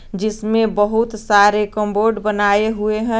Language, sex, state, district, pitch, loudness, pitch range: Hindi, female, Jharkhand, Garhwa, 215 Hz, -17 LUFS, 205-220 Hz